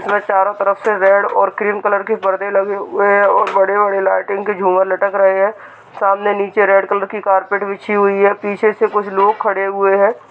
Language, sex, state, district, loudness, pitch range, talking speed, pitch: Hindi, male, Uttar Pradesh, Hamirpur, -15 LUFS, 195-205 Hz, 235 wpm, 200 Hz